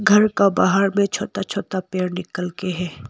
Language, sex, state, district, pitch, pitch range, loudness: Hindi, female, Arunachal Pradesh, Longding, 190 Hz, 180-200 Hz, -21 LUFS